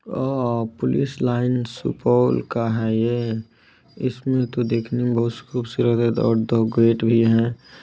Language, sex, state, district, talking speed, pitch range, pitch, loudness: Maithili, male, Bihar, Supaul, 155 wpm, 115-125 Hz, 115 Hz, -21 LUFS